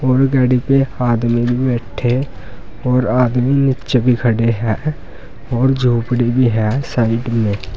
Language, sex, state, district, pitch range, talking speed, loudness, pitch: Hindi, male, Uttar Pradesh, Saharanpur, 115-130 Hz, 130 wpm, -16 LUFS, 125 Hz